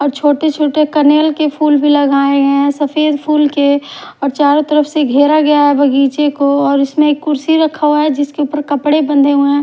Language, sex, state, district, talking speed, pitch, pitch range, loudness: Hindi, female, Punjab, Fazilka, 200 wpm, 290 Hz, 285-300 Hz, -12 LUFS